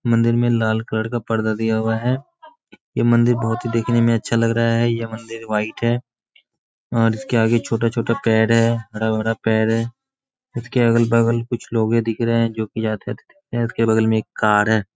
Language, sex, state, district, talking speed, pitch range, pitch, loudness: Hindi, male, Bihar, Saharsa, 200 wpm, 110-120 Hz, 115 Hz, -19 LUFS